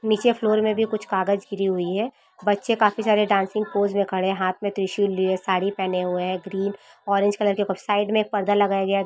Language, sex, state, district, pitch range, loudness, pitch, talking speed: Hindi, female, Jharkhand, Sahebganj, 190-210 Hz, -23 LUFS, 200 Hz, 240 wpm